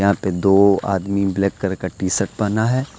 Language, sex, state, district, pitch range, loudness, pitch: Hindi, male, Jharkhand, Deoghar, 95-100 Hz, -19 LUFS, 100 Hz